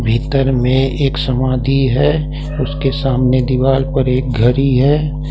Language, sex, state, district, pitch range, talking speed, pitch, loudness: Hindi, male, Jharkhand, Ranchi, 130-140 Hz, 135 wpm, 135 Hz, -15 LUFS